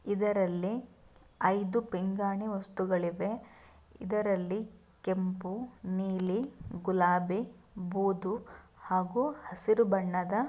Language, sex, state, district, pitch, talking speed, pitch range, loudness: Kannada, female, Karnataka, Mysore, 195 Hz, 70 wpm, 185-215 Hz, -32 LUFS